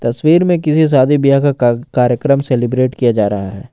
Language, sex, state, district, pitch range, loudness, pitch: Hindi, male, Jharkhand, Ranchi, 120-145 Hz, -13 LUFS, 130 Hz